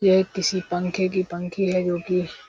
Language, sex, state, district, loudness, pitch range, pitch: Hindi, male, Uttar Pradesh, Hamirpur, -24 LUFS, 180-190 Hz, 185 Hz